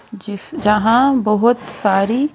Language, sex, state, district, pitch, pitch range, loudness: Hindi, female, Madhya Pradesh, Bhopal, 225 Hz, 210-255 Hz, -15 LUFS